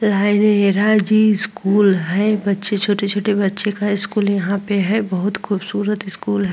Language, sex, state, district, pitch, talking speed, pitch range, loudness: Hindi, female, Uttar Pradesh, Muzaffarnagar, 205 Hz, 145 wpm, 200-210 Hz, -17 LUFS